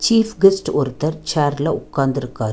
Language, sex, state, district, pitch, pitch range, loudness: Tamil, female, Tamil Nadu, Nilgiris, 150 Hz, 135-190 Hz, -18 LUFS